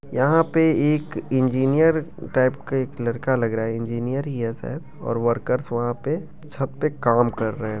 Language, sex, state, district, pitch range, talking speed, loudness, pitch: Maithili, male, Bihar, Begusarai, 115-150 Hz, 190 wpm, -23 LUFS, 130 Hz